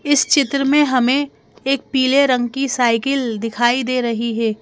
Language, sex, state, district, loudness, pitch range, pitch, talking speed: Hindi, female, Madhya Pradesh, Bhopal, -17 LUFS, 240-275 Hz, 255 Hz, 170 wpm